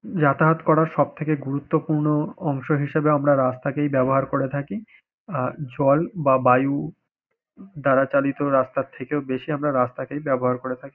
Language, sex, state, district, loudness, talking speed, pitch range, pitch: Bengali, male, West Bengal, Paschim Medinipur, -22 LUFS, 135 wpm, 135-155 Hz, 145 Hz